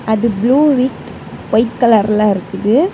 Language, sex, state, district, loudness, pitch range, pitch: Tamil, female, Tamil Nadu, Kanyakumari, -13 LUFS, 210-255 Hz, 225 Hz